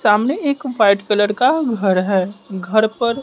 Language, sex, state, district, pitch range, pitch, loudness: Hindi, male, Bihar, West Champaran, 200-250 Hz, 215 Hz, -17 LUFS